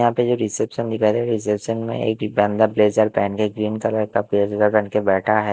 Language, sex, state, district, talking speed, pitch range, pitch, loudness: Hindi, male, Himachal Pradesh, Shimla, 150 wpm, 105-115 Hz, 110 Hz, -20 LUFS